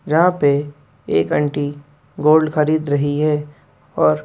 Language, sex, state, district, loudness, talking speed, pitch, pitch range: Hindi, male, Madhya Pradesh, Bhopal, -18 LUFS, 125 wpm, 145 Hz, 145-155 Hz